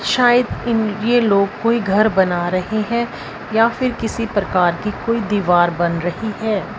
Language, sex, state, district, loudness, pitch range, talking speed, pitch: Hindi, female, Punjab, Fazilka, -18 LUFS, 190-230 Hz, 170 wpm, 215 Hz